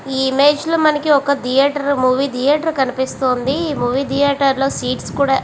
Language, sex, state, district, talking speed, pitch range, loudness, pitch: Telugu, female, Andhra Pradesh, Visakhapatnam, 175 wpm, 260-285 Hz, -16 LUFS, 275 Hz